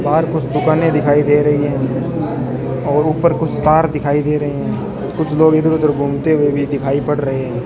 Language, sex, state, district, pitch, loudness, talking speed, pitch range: Hindi, male, Rajasthan, Bikaner, 145 Hz, -15 LUFS, 195 wpm, 140-155 Hz